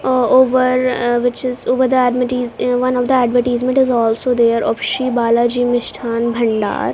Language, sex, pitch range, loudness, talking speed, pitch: English, female, 240-255 Hz, -15 LUFS, 180 wpm, 245 Hz